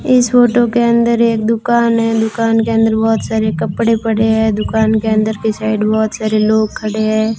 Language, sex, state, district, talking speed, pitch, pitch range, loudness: Hindi, female, Rajasthan, Bikaner, 205 wpm, 220 Hz, 220-230 Hz, -14 LUFS